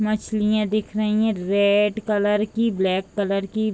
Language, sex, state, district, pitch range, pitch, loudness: Hindi, female, Bihar, Bhagalpur, 200-215 Hz, 210 Hz, -21 LUFS